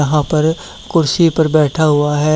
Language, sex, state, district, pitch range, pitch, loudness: Hindi, male, Haryana, Charkhi Dadri, 150-160 Hz, 155 Hz, -14 LUFS